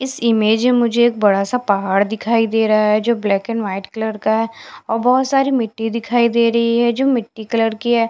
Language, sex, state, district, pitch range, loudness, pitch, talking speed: Hindi, female, Bihar, Katihar, 215-240 Hz, -17 LUFS, 230 Hz, 235 wpm